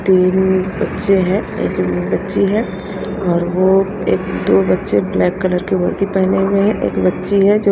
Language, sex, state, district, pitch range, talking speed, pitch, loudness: Hindi, female, Haryana, Rohtak, 180-195 Hz, 170 wpm, 190 Hz, -16 LUFS